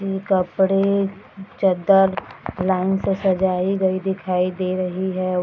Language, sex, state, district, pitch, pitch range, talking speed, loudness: Hindi, female, Bihar, Madhepura, 190 Hz, 185-195 Hz, 120 wpm, -20 LUFS